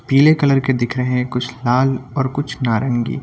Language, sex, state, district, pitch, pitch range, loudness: Hindi, male, Uttar Pradesh, Lucknow, 130 Hz, 125-135 Hz, -17 LUFS